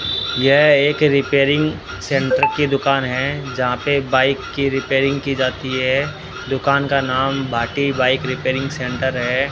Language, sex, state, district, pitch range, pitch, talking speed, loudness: Hindi, male, Rajasthan, Bikaner, 130-140 Hz, 135 Hz, 145 wpm, -18 LUFS